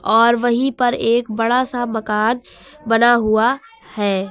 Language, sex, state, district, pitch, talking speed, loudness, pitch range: Hindi, female, Uttar Pradesh, Lucknow, 235 Hz, 140 wpm, -17 LUFS, 220-245 Hz